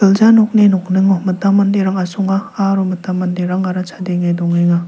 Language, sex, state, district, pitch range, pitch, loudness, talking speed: Garo, male, Meghalaya, South Garo Hills, 180-195 Hz, 190 Hz, -14 LUFS, 135 wpm